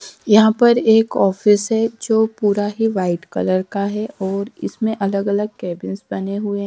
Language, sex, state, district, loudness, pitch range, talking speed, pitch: Hindi, female, Haryana, Charkhi Dadri, -18 LUFS, 195-220 Hz, 170 wpm, 205 Hz